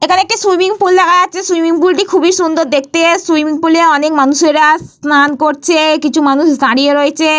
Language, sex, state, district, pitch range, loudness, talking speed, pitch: Bengali, female, West Bengal, Paschim Medinipur, 300-355 Hz, -10 LUFS, 185 wpm, 320 Hz